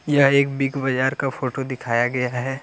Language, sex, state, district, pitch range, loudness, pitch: Hindi, male, Jharkhand, Deoghar, 130-140 Hz, -21 LUFS, 135 Hz